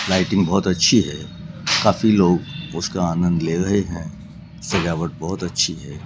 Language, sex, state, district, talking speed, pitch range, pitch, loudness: Hindi, male, Rajasthan, Jaipur, 150 wpm, 85-95 Hz, 90 Hz, -19 LUFS